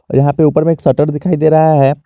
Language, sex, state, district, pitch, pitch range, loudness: Hindi, male, Jharkhand, Garhwa, 155 Hz, 145-155 Hz, -11 LUFS